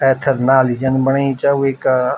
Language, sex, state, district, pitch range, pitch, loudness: Garhwali, male, Uttarakhand, Tehri Garhwal, 130-135 Hz, 135 Hz, -15 LUFS